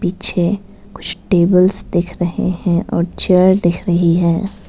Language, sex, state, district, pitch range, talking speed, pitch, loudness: Hindi, female, Arunachal Pradesh, Lower Dibang Valley, 175-195 Hz, 140 wpm, 180 Hz, -15 LUFS